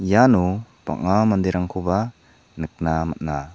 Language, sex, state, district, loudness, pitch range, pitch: Garo, male, Meghalaya, South Garo Hills, -21 LUFS, 80-110 Hz, 95 Hz